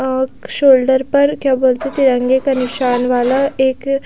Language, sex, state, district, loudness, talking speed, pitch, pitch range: Hindi, female, Odisha, Nuapada, -14 LUFS, 145 wpm, 265 Hz, 255-275 Hz